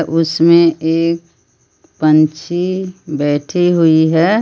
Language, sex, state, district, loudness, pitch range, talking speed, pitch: Hindi, female, Jharkhand, Palamu, -14 LUFS, 155-170 Hz, 80 wpm, 165 Hz